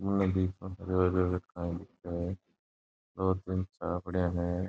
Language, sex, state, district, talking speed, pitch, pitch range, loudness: Marwari, male, Rajasthan, Nagaur, 50 wpm, 90 Hz, 85-95 Hz, -33 LUFS